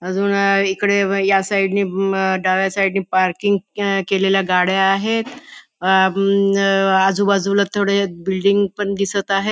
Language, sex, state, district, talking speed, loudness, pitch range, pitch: Marathi, female, Maharashtra, Nagpur, 120 wpm, -17 LUFS, 190-200 Hz, 195 Hz